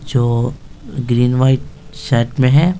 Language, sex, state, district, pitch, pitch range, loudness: Hindi, male, Bihar, Patna, 130 Hz, 120-140 Hz, -15 LUFS